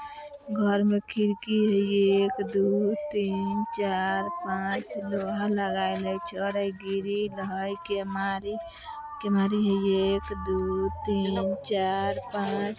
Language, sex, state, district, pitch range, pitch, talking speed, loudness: Bajjika, female, Bihar, Vaishali, 195-205 Hz, 200 Hz, 115 wpm, -28 LUFS